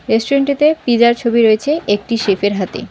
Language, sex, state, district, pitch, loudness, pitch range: Bengali, female, West Bengal, Alipurduar, 235 Hz, -14 LUFS, 205-280 Hz